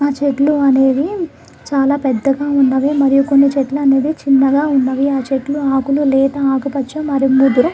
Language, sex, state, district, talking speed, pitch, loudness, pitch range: Telugu, female, Andhra Pradesh, Krishna, 145 wpm, 275 Hz, -14 LUFS, 270-285 Hz